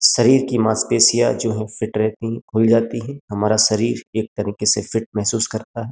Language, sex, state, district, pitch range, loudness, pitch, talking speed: Hindi, male, Uttar Pradesh, Jyotiba Phule Nagar, 110-115 Hz, -18 LUFS, 110 Hz, 200 wpm